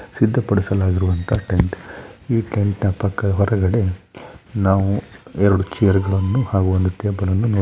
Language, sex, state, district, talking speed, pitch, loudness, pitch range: Kannada, male, Karnataka, Shimoga, 140 wpm, 100 Hz, -19 LUFS, 95-105 Hz